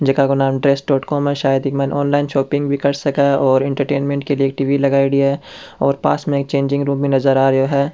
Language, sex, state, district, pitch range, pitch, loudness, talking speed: Rajasthani, male, Rajasthan, Churu, 135-140 Hz, 140 Hz, -16 LUFS, 255 wpm